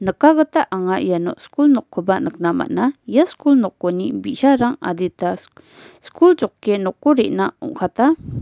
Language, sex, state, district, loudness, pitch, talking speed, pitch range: Garo, female, Meghalaya, West Garo Hills, -18 LUFS, 240 Hz, 120 wpm, 185-290 Hz